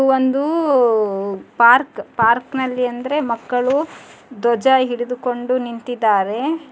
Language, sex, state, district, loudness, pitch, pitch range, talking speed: Kannada, male, Karnataka, Dharwad, -18 LUFS, 245 Hz, 235-265 Hz, 70 wpm